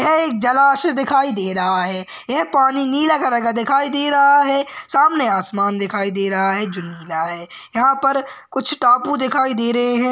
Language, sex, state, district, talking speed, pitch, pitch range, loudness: Hindi, male, Maharashtra, Sindhudurg, 195 wpm, 255 Hz, 200-275 Hz, -17 LUFS